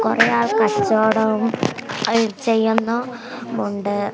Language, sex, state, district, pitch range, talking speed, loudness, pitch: Malayalam, female, Kerala, Kasaragod, 205-230 Hz, 85 wpm, -19 LUFS, 220 Hz